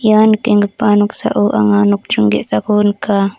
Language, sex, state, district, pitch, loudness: Garo, female, Meghalaya, North Garo Hills, 200 Hz, -13 LUFS